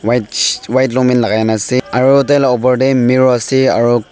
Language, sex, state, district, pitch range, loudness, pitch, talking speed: Nagamese, male, Nagaland, Dimapur, 115-130 Hz, -12 LUFS, 125 Hz, 190 wpm